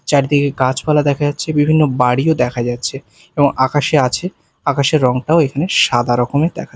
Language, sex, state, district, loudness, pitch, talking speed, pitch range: Bengali, male, Bihar, Katihar, -15 LUFS, 145 Hz, 150 wpm, 130-155 Hz